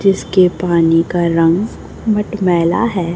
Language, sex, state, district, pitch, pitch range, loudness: Hindi, female, Chhattisgarh, Raipur, 180 Hz, 170-195 Hz, -14 LUFS